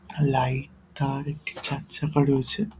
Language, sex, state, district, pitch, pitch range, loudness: Bengali, male, West Bengal, Purulia, 145 Hz, 135-150 Hz, -27 LUFS